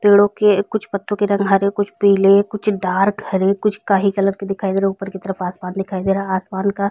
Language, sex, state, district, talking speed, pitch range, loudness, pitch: Hindi, female, Chhattisgarh, Raigarh, 260 wpm, 195-205 Hz, -18 LUFS, 195 Hz